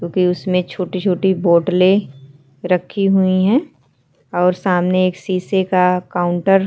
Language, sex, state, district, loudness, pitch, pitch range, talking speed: Hindi, female, Uttarakhand, Tehri Garhwal, -16 LUFS, 180 Hz, 175-190 Hz, 125 wpm